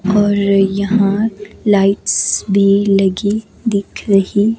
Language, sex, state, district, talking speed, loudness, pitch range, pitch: Hindi, female, Himachal Pradesh, Shimla, 90 wpm, -14 LUFS, 195-210 Hz, 200 Hz